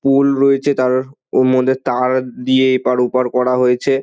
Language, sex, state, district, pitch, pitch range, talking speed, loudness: Bengali, male, West Bengal, Dakshin Dinajpur, 130 Hz, 125-135 Hz, 165 wpm, -15 LUFS